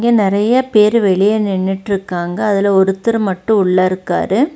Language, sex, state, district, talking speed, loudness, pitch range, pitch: Tamil, female, Tamil Nadu, Nilgiris, 120 wpm, -14 LUFS, 190-220 Hz, 200 Hz